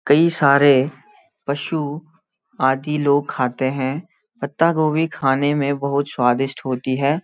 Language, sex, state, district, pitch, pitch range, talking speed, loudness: Hindi, male, Uttarakhand, Uttarkashi, 140 Hz, 135-160 Hz, 125 wpm, -19 LUFS